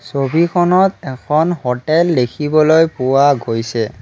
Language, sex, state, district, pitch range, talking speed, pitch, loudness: Assamese, male, Assam, Kamrup Metropolitan, 125-165 Hz, 90 wpm, 150 Hz, -14 LUFS